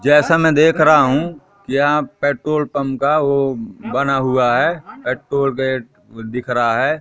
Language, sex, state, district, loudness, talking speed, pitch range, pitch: Hindi, male, Madhya Pradesh, Katni, -16 LUFS, 165 wpm, 130-155 Hz, 140 Hz